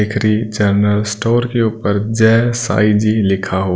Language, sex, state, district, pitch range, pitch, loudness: Hindi, male, Punjab, Kapurthala, 105-115 Hz, 105 Hz, -15 LUFS